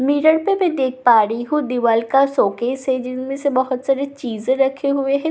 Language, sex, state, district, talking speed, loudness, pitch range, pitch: Hindi, female, Bihar, Katihar, 235 wpm, -18 LUFS, 250-280 Hz, 270 Hz